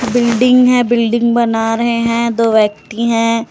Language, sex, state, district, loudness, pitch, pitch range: Hindi, female, Chhattisgarh, Raipur, -13 LUFS, 235 Hz, 230-240 Hz